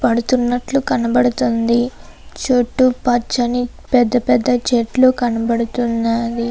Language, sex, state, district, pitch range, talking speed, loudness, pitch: Telugu, female, Andhra Pradesh, Anantapur, 235-250 Hz, 85 wpm, -16 LUFS, 240 Hz